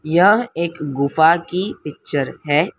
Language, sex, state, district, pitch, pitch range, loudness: Hindi, female, Maharashtra, Mumbai Suburban, 160 Hz, 145-175 Hz, -18 LUFS